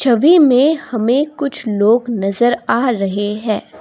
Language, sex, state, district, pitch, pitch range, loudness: Hindi, female, Assam, Kamrup Metropolitan, 240 Hz, 215-270 Hz, -15 LUFS